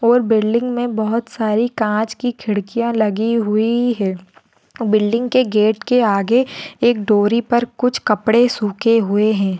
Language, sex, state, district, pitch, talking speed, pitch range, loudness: Hindi, female, Maharashtra, Solapur, 225 Hz, 150 wpm, 210-240 Hz, -17 LUFS